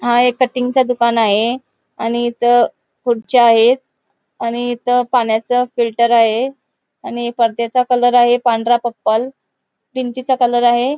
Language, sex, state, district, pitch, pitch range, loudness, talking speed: Marathi, female, Goa, North and South Goa, 240 Hz, 235-250 Hz, -15 LUFS, 130 wpm